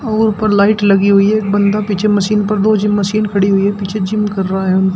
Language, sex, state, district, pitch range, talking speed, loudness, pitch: Hindi, male, Uttar Pradesh, Shamli, 195-210 Hz, 265 wpm, -13 LUFS, 205 Hz